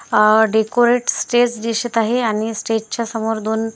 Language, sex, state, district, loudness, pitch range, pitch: Marathi, male, Maharashtra, Washim, -17 LUFS, 220-240 Hz, 225 Hz